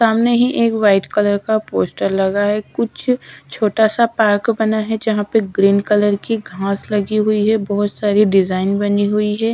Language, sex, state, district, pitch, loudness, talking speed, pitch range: Hindi, female, Odisha, Sambalpur, 210 Hz, -16 LUFS, 190 wpm, 205-220 Hz